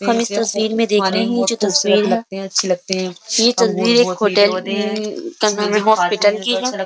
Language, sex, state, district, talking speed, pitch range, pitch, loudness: Hindi, female, Uttar Pradesh, Jyotiba Phule Nagar, 155 wpm, 195-230 Hz, 210 Hz, -16 LUFS